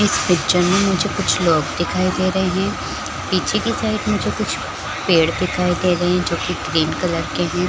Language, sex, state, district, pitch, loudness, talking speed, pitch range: Hindi, female, Chhattisgarh, Balrampur, 180 Hz, -19 LUFS, 205 wpm, 175-185 Hz